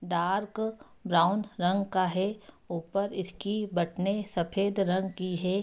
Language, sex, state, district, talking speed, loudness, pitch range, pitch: Hindi, female, Bihar, Darbhanga, 130 wpm, -30 LUFS, 180-200 Hz, 190 Hz